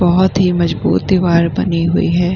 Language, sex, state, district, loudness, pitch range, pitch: Hindi, female, Bihar, Vaishali, -14 LUFS, 170-180 Hz, 175 Hz